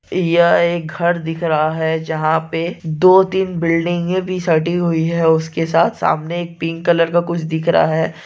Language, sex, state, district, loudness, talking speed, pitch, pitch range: Hindi, male, Chhattisgarh, Bastar, -16 LUFS, 190 wpm, 165 Hz, 160-175 Hz